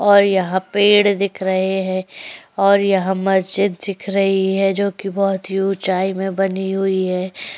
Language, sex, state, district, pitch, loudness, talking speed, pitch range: Hindi, female, Maharashtra, Chandrapur, 195 Hz, -17 LUFS, 160 wpm, 190-200 Hz